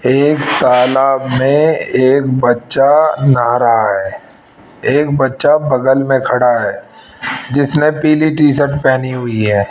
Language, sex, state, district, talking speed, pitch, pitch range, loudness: Hindi, female, Rajasthan, Jaipur, 130 wpm, 135 Hz, 125-145 Hz, -12 LUFS